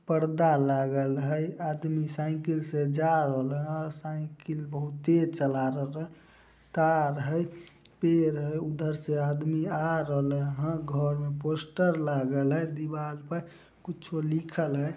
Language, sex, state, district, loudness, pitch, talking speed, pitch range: Maithili, male, Bihar, Samastipur, -29 LUFS, 155 Hz, 135 wpm, 145-160 Hz